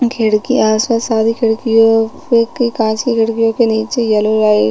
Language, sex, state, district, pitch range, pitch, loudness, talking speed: Hindi, female, Chhattisgarh, Rajnandgaon, 220-235 Hz, 225 Hz, -13 LUFS, 180 wpm